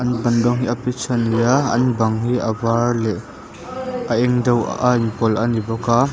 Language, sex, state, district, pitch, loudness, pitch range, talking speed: Mizo, male, Mizoram, Aizawl, 120 Hz, -19 LUFS, 115-125 Hz, 235 wpm